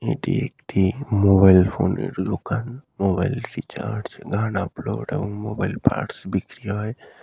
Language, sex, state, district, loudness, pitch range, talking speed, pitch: Bengali, male, West Bengal, Malda, -22 LUFS, 95-125 Hz, 115 wpm, 105 Hz